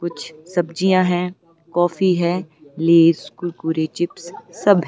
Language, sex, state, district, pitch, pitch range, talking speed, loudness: Hindi, female, Himachal Pradesh, Shimla, 175 Hz, 165-180 Hz, 125 wpm, -19 LUFS